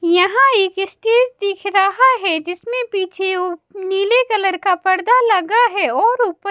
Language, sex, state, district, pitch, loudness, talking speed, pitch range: Hindi, female, Maharashtra, Gondia, 395 Hz, -16 LUFS, 155 wpm, 375-465 Hz